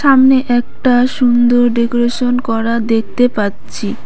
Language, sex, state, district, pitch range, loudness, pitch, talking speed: Bengali, female, West Bengal, Cooch Behar, 235-250 Hz, -13 LUFS, 245 Hz, 105 wpm